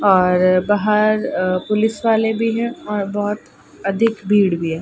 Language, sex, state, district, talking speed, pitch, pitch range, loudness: Hindi, female, Uttar Pradesh, Ghazipur, 150 wpm, 205 Hz, 185-220 Hz, -18 LUFS